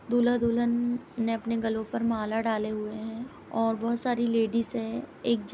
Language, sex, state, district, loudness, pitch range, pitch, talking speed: Hindi, female, Uttar Pradesh, Etah, -29 LUFS, 225-235 Hz, 230 Hz, 195 wpm